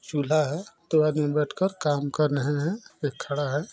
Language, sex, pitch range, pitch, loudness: Maithili, female, 145-160 Hz, 150 Hz, -26 LUFS